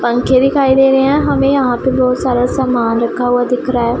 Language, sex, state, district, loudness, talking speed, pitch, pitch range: Hindi, female, Punjab, Pathankot, -13 LUFS, 225 wpm, 255 Hz, 245-265 Hz